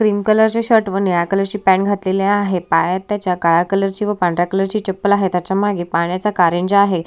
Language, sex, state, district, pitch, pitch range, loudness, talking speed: Marathi, female, Maharashtra, Solapur, 195 Hz, 180-205 Hz, -16 LUFS, 230 wpm